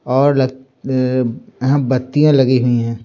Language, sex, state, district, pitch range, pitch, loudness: Hindi, male, Bihar, Patna, 125-135 Hz, 130 Hz, -15 LUFS